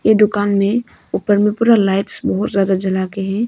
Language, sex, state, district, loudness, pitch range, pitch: Hindi, female, Arunachal Pradesh, Longding, -16 LUFS, 195-215 Hz, 205 Hz